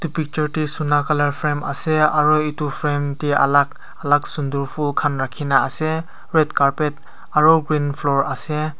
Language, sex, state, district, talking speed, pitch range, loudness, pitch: Nagamese, male, Nagaland, Kohima, 150 wpm, 145-155 Hz, -19 LUFS, 150 Hz